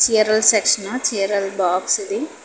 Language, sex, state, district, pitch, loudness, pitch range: Telugu, female, Telangana, Hyderabad, 215 Hz, -18 LUFS, 195-235 Hz